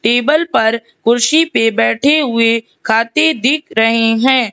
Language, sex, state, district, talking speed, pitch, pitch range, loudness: Hindi, female, Madhya Pradesh, Katni, 130 wpm, 230 Hz, 225-290 Hz, -13 LUFS